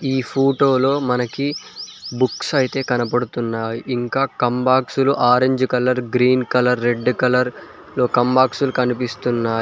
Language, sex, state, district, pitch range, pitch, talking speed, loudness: Telugu, male, Telangana, Mahabubabad, 125-130 Hz, 125 Hz, 100 wpm, -18 LUFS